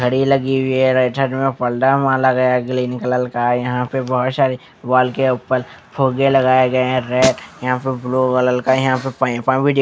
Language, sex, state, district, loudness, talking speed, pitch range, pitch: Hindi, male, Bihar, West Champaran, -17 LUFS, 220 wpm, 125-130 Hz, 130 Hz